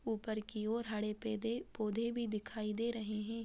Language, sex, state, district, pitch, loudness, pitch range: Hindi, female, Bihar, Saharsa, 220 Hz, -39 LUFS, 215-230 Hz